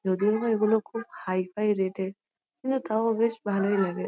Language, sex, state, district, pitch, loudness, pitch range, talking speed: Bengali, female, West Bengal, North 24 Parganas, 210 Hz, -27 LUFS, 190-230 Hz, 160 wpm